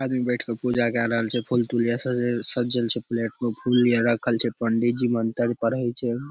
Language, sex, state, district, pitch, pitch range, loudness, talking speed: Maithili, male, Bihar, Darbhanga, 120 Hz, 115-125 Hz, -24 LUFS, 245 wpm